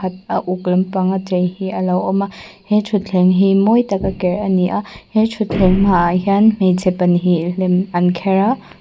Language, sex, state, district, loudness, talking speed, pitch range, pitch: Mizo, female, Mizoram, Aizawl, -16 LUFS, 210 wpm, 180-200 Hz, 185 Hz